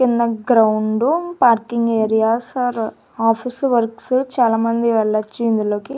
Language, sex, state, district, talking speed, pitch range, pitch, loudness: Telugu, female, Andhra Pradesh, Annamaya, 110 wpm, 220-245 Hz, 230 Hz, -18 LUFS